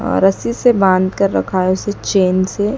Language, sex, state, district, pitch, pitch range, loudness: Hindi, male, Madhya Pradesh, Dhar, 195 Hz, 185-205 Hz, -15 LUFS